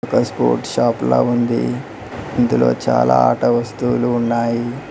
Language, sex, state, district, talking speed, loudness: Telugu, male, Telangana, Mahabubabad, 120 wpm, -17 LUFS